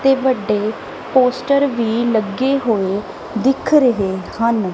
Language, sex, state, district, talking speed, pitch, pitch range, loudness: Punjabi, female, Punjab, Kapurthala, 115 wpm, 235 Hz, 210-265 Hz, -17 LUFS